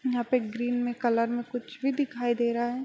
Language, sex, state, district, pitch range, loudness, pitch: Hindi, female, Bihar, Kishanganj, 235-250 Hz, -28 LUFS, 240 Hz